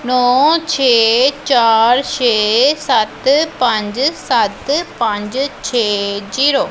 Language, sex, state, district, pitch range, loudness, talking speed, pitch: Punjabi, female, Punjab, Pathankot, 225-280 Hz, -14 LUFS, 100 wpm, 250 Hz